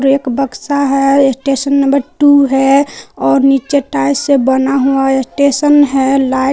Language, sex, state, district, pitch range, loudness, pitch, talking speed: Hindi, female, Jharkhand, Palamu, 270-280 Hz, -11 LUFS, 275 Hz, 165 wpm